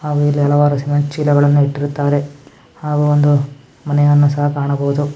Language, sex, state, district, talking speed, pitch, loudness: Kannada, male, Karnataka, Mysore, 150 wpm, 145 Hz, -15 LUFS